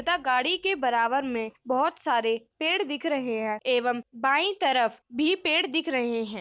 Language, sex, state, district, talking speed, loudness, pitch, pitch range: Hindi, female, Uttar Pradesh, Hamirpur, 180 wpm, -26 LUFS, 260 Hz, 235-320 Hz